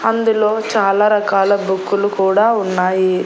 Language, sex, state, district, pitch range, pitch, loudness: Telugu, female, Andhra Pradesh, Annamaya, 190-215 Hz, 200 Hz, -15 LUFS